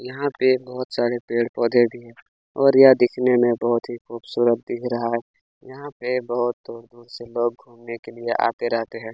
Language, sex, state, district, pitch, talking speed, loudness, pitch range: Hindi, male, Chhattisgarh, Kabirdham, 120 Hz, 205 wpm, -21 LUFS, 120-125 Hz